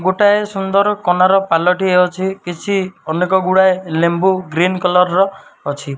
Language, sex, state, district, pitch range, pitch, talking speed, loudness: Odia, male, Odisha, Malkangiri, 180-195 Hz, 185 Hz, 140 wpm, -15 LUFS